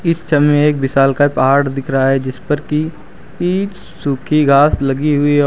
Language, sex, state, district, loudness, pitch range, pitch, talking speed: Hindi, male, Uttar Pradesh, Lucknow, -14 LUFS, 135-150 Hz, 145 Hz, 175 wpm